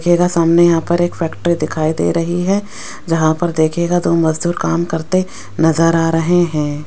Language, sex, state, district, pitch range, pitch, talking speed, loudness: Hindi, female, Rajasthan, Jaipur, 160-175 Hz, 170 Hz, 185 wpm, -15 LUFS